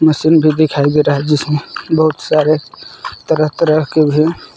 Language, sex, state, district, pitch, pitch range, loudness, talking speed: Hindi, male, Jharkhand, Palamu, 155 Hz, 150-155 Hz, -13 LUFS, 170 wpm